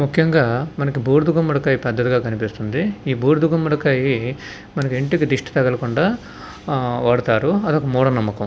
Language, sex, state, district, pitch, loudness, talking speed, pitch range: Telugu, male, Andhra Pradesh, Visakhapatnam, 135 Hz, -19 LUFS, 135 wpm, 125-155 Hz